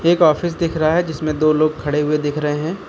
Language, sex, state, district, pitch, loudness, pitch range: Hindi, male, Uttar Pradesh, Lucknow, 155 Hz, -18 LUFS, 150-170 Hz